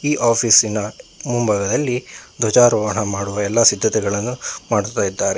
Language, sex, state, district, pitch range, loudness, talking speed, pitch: Kannada, male, Karnataka, Bangalore, 100-120 Hz, -17 LUFS, 100 wpm, 110 Hz